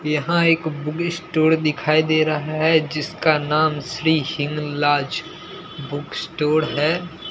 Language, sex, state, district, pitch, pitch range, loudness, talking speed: Hindi, male, Bihar, Katihar, 155 Hz, 150-160 Hz, -20 LUFS, 130 wpm